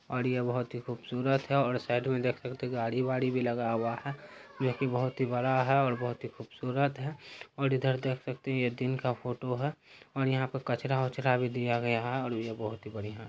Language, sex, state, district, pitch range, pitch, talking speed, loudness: Hindi, male, Bihar, Araria, 120-135 Hz, 125 Hz, 245 wpm, -32 LUFS